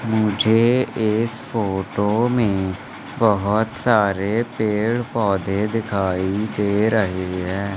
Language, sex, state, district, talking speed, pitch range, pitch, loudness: Hindi, male, Madhya Pradesh, Katni, 95 wpm, 100-115 Hz, 110 Hz, -20 LUFS